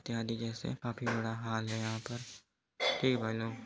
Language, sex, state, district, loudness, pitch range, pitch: Hindi, male, Uttar Pradesh, Hamirpur, -36 LUFS, 110-120 Hz, 115 Hz